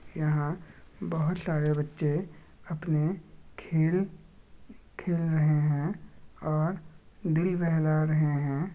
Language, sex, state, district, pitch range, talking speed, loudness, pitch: Magahi, male, Bihar, Gaya, 155-175 Hz, 105 wpm, -29 LUFS, 160 Hz